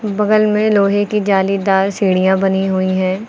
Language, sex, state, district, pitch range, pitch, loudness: Hindi, female, Uttar Pradesh, Lucknow, 190-210 Hz, 195 Hz, -14 LUFS